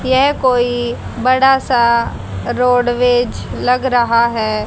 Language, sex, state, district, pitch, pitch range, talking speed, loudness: Hindi, female, Haryana, Charkhi Dadri, 245 Hz, 235-255 Hz, 100 wpm, -14 LUFS